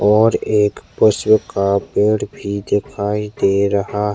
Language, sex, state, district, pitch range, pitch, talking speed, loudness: Hindi, male, Chhattisgarh, Jashpur, 100-105 Hz, 105 Hz, 145 wpm, -17 LUFS